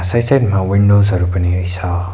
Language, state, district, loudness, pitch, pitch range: Nepali, West Bengal, Darjeeling, -14 LUFS, 95 Hz, 90-100 Hz